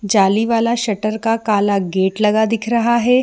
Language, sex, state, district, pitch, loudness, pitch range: Hindi, female, Jharkhand, Jamtara, 220 Hz, -16 LUFS, 205-230 Hz